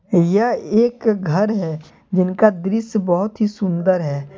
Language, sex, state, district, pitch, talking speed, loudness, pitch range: Hindi, male, Jharkhand, Deoghar, 195 Hz, 135 wpm, -18 LUFS, 175-215 Hz